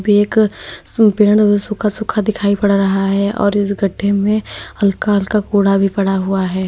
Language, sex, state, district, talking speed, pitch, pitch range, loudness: Hindi, female, Uttar Pradesh, Lalitpur, 180 wpm, 205 Hz, 195-210 Hz, -15 LUFS